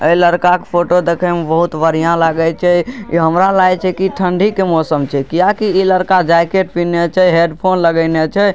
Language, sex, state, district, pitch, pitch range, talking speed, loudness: Maithili, male, Bihar, Darbhanga, 175 Hz, 165-185 Hz, 205 wpm, -13 LUFS